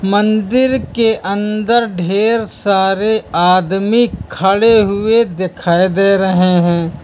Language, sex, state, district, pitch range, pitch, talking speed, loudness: Hindi, male, Uttar Pradesh, Lucknow, 185-225 Hz, 200 Hz, 100 wpm, -13 LUFS